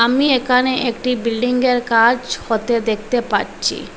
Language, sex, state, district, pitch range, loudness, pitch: Bengali, female, Assam, Hailakandi, 230-250 Hz, -17 LUFS, 245 Hz